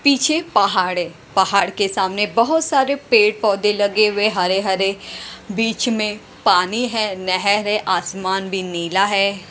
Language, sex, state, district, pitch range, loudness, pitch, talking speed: Hindi, female, Punjab, Pathankot, 190-220 Hz, -18 LUFS, 205 Hz, 130 wpm